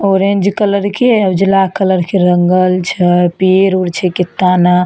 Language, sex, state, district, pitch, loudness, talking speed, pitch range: Maithili, female, Bihar, Samastipur, 185 Hz, -12 LUFS, 160 wpm, 180-195 Hz